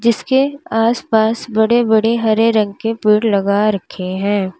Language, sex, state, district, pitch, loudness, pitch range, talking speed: Hindi, female, Uttar Pradesh, Lalitpur, 220 Hz, -15 LUFS, 205-230 Hz, 155 wpm